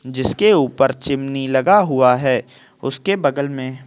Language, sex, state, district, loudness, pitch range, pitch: Hindi, male, Chhattisgarh, Kabirdham, -17 LUFS, 130-140 Hz, 135 Hz